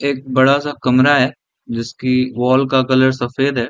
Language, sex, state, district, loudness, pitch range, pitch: Hindi, male, Bihar, Sitamarhi, -15 LUFS, 125-135 Hz, 130 Hz